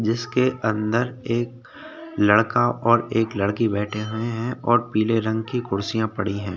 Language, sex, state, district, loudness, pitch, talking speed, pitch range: Hindi, male, Maharashtra, Chandrapur, -22 LUFS, 110 Hz, 155 wpm, 105-120 Hz